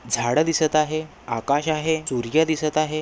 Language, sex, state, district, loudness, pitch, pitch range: Marathi, male, Maharashtra, Nagpur, -22 LUFS, 155 Hz, 130-155 Hz